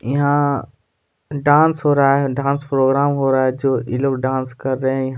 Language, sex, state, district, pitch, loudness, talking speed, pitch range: Hindi, male, Chhattisgarh, Kabirdham, 135 Hz, -17 LUFS, 210 wpm, 130-140 Hz